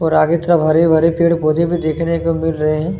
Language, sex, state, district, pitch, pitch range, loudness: Hindi, male, Chhattisgarh, Kabirdham, 165 Hz, 155-170 Hz, -15 LUFS